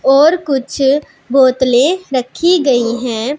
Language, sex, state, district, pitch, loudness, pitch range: Hindi, female, Punjab, Pathankot, 270 Hz, -13 LUFS, 255-295 Hz